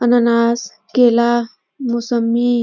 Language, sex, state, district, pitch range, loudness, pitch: Bhojpuri, female, Uttar Pradesh, Varanasi, 235-245 Hz, -16 LUFS, 235 Hz